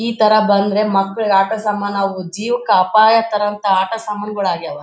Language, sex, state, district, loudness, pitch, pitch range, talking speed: Kannada, male, Karnataka, Bellary, -16 LUFS, 205 Hz, 195-215 Hz, 150 wpm